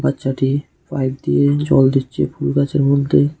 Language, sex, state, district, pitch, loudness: Bengali, male, Tripura, West Tripura, 135 Hz, -17 LUFS